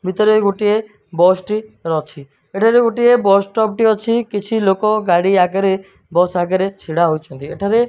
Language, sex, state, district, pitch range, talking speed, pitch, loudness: Odia, male, Odisha, Malkangiri, 180-215 Hz, 165 wpm, 195 Hz, -16 LUFS